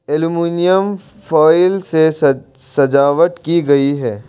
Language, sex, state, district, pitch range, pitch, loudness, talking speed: Hindi, male, Arunachal Pradesh, Longding, 140-170 Hz, 160 Hz, -14 LUFS, 100 wpm